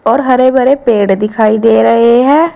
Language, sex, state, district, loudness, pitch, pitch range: Hindi, female, Uttar Pradesh, Saharanpur, -9 LUFS, 235 Hz, 215-260 Hz